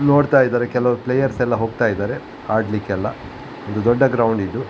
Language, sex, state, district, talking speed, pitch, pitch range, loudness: Kannada, male, Karnataka, Dakshina Kannada, 165 wpm, 120 Hz, 110-130 Hz, -19 LUFS